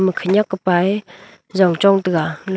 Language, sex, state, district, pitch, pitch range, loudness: Wancho, female, Arunachal Pradesh, Longding, 190 Hz, 180-195 Hz, -17 LUFS